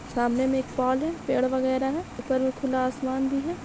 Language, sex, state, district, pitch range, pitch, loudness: Hindi, female, Jharkhand, Sahebganj, 255-270 Hz, 260 Hz, -26 LUFS